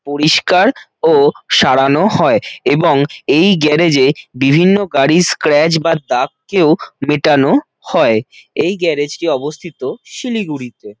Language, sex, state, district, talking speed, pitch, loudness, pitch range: Bengali, male, West Bengal, Jalpaiguri, 105 wpm, 155 Hz, -13 LUFS, 145-180 Hz